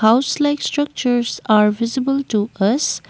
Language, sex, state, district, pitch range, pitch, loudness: English, female, Assam, Kamrup Metropolitan, 220-275 Hz, 245 Hz, -18 LUFS